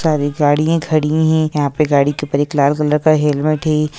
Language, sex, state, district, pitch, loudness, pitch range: Hindi, female, Bihar, Sitamarhi, 150 Hz, -15 LUFS, 145-155 Hz